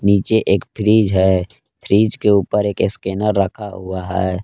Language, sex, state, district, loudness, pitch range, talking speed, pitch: Hindi, male, Jharkhand, Palamu, -16 LUFS, 95-105 Hz, 160 wpm, 100 Hz